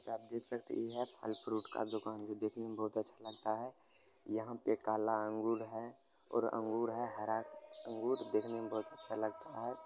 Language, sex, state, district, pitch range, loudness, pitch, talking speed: Hindi, male, Bihar, Supaul, 110-115 Hz, -41 LUFS, 110 Hz, 200 wpm